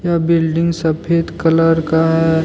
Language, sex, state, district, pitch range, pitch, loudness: Hindi, male, Jharkhand, Deoghar, 160-170 Hz, 165 Hz, -15 LUFS